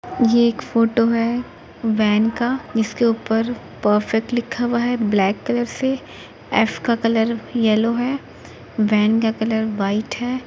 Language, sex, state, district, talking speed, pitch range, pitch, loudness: Hindi, female, Uttar Pradesh, Jalaun, 135 wpm, 220-240 Hz, 230 Hz, -20 LUFS